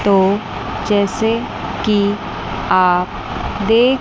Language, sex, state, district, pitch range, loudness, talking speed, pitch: Hindi, female, Chandigarh, Chandigarh, 195-220 Hz, -17 LUFS, 75 wpm, 205 Hz